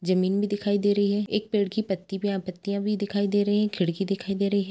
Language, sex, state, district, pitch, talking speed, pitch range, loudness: Hindi, female, Chhattisgarh, Sukma, 200 Hz, 270 wpm, 195-205 Hz, -26 LUFS